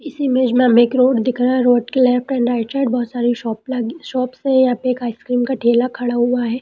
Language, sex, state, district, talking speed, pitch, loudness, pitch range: Hindi, female, Bihar, Gaya, 265 wpm, 250 Hz, -17 LUFS, 240-255 Hz